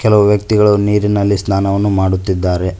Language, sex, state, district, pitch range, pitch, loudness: Kannada, male, Karnataka, Koppal, 95-105 Hz, 100 Hz, -13 LUFS